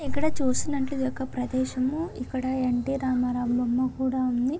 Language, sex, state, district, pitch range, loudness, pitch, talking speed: Telugu, female, Andhra Pradesh, Srikakulam, 250-270 Hz, -27 LUFS, 260 Hz, 155 wpm